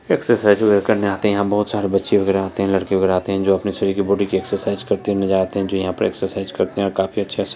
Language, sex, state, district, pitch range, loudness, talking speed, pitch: Hindi, female, Bihar, Saharsa, 95-100 Hz, -19 LUFS, 310 wpm, 100 Hz